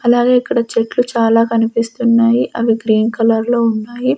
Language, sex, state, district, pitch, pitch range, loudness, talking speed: Telugu, female, Andhra Pradesh, Sri Satya Sai, 230 Hz, 225-240 Hz, -14 LUFS, 130 wpm